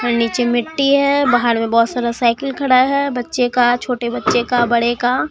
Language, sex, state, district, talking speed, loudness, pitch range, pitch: Hindi, male, Bihar, Katihar, 205 wpm, -16 LUFS, 235-260 Hz, 245 Hz